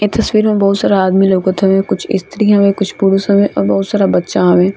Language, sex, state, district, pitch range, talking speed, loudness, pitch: Bhojpuri, female, Bihar, Gopalganj, 190-205 Hz, 265 wpm, -12 LUFS, 195 Hz